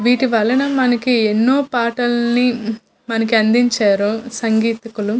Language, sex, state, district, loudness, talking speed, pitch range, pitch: Telugu, female, Andhra Pradesh, Visakhapatnam, -16 LUFS, 105 wpm, 225-245 Hz, 235 Hz